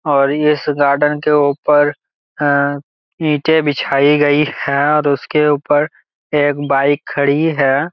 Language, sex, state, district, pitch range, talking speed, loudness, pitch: Hindi, male, Jharkhand, Jamtara, 140-150 Hz, 130 wpm, -14 LUFS, 145 Hz